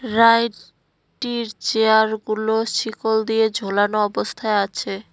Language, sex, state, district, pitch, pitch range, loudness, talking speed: Bengali, female, West Bengal, Cooch Behar, 220 Hz, 205-225 Hz, -20 LUFS, 95 wpm